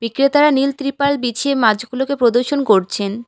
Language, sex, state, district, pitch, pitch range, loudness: Bengali, female, West Bengal, Alipurduar, 265 Hz, 230-280 Hz, -16 LUFS